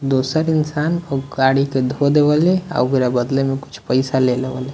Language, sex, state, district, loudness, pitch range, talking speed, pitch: Bhojpuri, male, Bihar, Muzaffarpur, -18 LUFS, 130-150 Hz, 200 wpm, 135 Hz